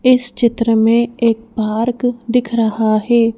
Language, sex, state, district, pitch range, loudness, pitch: Hindi, female, Madhya Pradesh, Bhopal, 225-240 Hz, -15 LUFS, 230 Hz